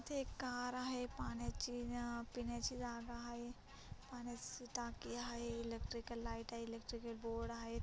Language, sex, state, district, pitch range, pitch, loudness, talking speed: Marathi, female, Maharashtra, Solapur, 235-245 Hz, 240 Hz, -46 LUFS, 125 wpm